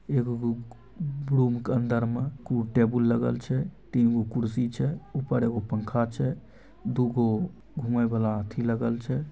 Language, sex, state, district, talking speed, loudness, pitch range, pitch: Angika, male, Bihar, Begusarai, 140 wpm, -28 LUFS, 115-130 Hz, 120 Hz